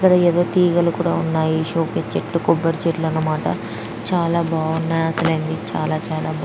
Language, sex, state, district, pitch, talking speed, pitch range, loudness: Telugu, female, Andhra Pradesh, Chittoor, 165 Hz, 140 wpm, 160-170 Hz, -20 LUFS